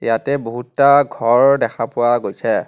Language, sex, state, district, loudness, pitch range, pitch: Assamese, male, Assam, Kamrup Metropolitan, -16 LUFS, 115-140 Hz, 120 Hz